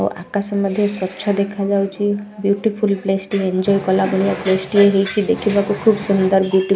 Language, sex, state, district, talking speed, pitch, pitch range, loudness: Odia, female, Odisha, Malkangiri, 170 wpm, 200 Hz, 195-205 Hz, -18 LUFS